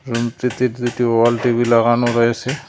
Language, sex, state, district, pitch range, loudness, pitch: Bengali, male, West Bengal, Cooch Behar, 115-125 Hz, -17 LUFS, 120 Hz